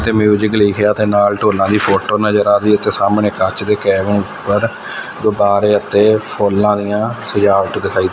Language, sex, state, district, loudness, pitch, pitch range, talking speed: Punjabi, male, Punjab, Fazilka, -14 LUFS, 105 Hz, 100-105 Hz, 160 wpm